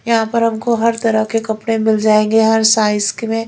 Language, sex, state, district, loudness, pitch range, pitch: Hindi, female, Chhattisgarh, Raipur, -14 LUFS, 220-230 Hz, 225 Hz